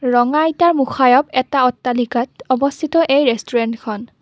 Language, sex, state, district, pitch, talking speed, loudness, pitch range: Assamese, female, Assam, Kamrup Metropolitan, 255 Hz, 115 wpm, -16 LUFS, 240-280 Hz